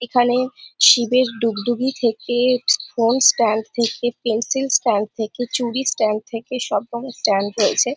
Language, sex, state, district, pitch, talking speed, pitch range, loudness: Bengali, female, West Bengal, Jhargram, 240 Hz, 130 wpm, 225-255 Hz, -19 LUFS